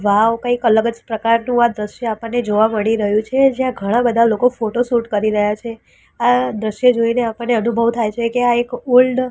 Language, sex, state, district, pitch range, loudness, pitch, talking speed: Gujarati, female, Gujarat, Gandhinagar, 220-245 Hz, -16 LUFS, 230 Hz, 200 wpm